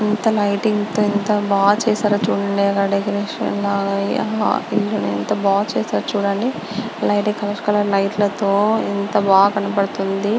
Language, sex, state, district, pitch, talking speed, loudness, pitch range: Telugu, female, Andhra Pradesh, Guntur, 205 Hz, 140 wpm, -18 LUFS, 200-210 Hz